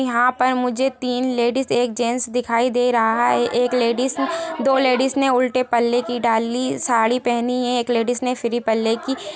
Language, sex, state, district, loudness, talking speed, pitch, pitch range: Hindi, female, Uttar Pradesh, Ghazipur, -19 LUFS, 190 wpm, 245 Hz, 235-255 Hz